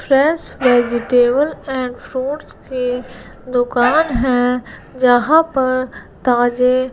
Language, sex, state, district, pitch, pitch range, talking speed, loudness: Hindi, female, Gujarat, Gandhinagar, 255 Hz, 245-265 Hz, 85 wpm, -16 LUFS